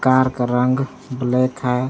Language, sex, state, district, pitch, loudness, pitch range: Hindi, male, Jharkhand, Palamu, 130 Hz, -19 LUFS, 125-130 Hz